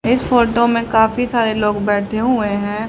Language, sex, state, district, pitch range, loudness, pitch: Hindi, female, Haryana, Jhajjar, 210-235 Hz, -16 LUFS, 220 Hz